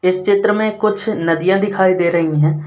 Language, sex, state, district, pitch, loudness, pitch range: Hindi, male, Uttar Pradesh, Muzaffarnagar, 190 Hz, -15 LUFS, 170-210 Hz